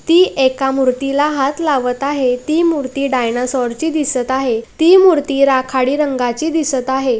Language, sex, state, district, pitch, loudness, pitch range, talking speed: Marathi, female, Maharashtra, Pune, 270 Hz, -15 LUFS, 255-300 Hz, 150 wpm